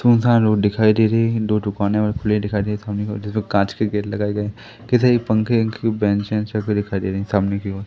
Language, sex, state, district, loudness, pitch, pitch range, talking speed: Hindi, male, Madhya Pradesh, Katni, -19 LUFS, 105 Hz, 105-110 Hz, 280 wpm